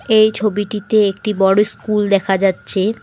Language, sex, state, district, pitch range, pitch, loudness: Bengali, female, West Bengal, Alipurduar, 195-215 Hz, 210 Hz, -16 LUFS